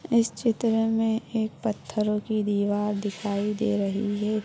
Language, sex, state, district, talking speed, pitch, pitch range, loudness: Hindi, male, Bihar, Samastipur, 150 wpm, 215 Hz, 205-225 Hz, -26 LUFS